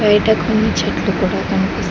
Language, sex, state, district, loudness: Telugu, female, Telangana, Mahabubabad, -16 LUFS